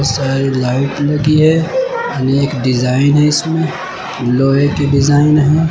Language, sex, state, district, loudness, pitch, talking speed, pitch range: Hindi, male, Uttar Pradesh, Lucknow, -13 LUFS, 145 Hz, 125 wpm, 135-155 Hz